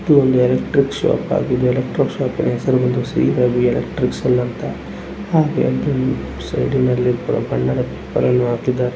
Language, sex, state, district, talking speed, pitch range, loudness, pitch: Kannada, male, Karnataka, Raichur, 105 wpm, 120-130 Hz, -18 LUFS, 125 Hz